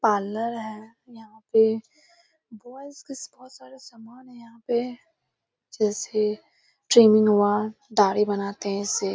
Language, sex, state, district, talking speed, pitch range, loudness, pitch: Hindi, female, Bihar, Bhagalpur, 125 wpm, 215-250 Hz, -23 LUFS, 225 Hz